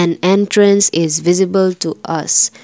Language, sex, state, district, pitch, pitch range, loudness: English, female, Assam, Kamrup Metropolitan, 190 Hz, 175-200 Hz, -13 LUFS